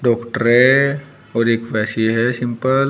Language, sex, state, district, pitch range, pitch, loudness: Hindi, male, Uttar Pradesh, Shamli, 115-135 Hz, 120 Hz, -16 LUFS